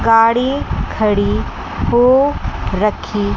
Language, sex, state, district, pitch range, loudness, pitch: Hindi, female, Chandigarh, Chandigarh, 210-250 Hz, -16 LUFS, 225 Hz